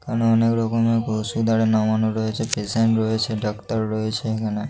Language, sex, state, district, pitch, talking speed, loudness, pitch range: Bengali, male, West Bengal, North 24 Parganas, 110 Hz, 155 wpm, -21 LUFS, 110-115 Hz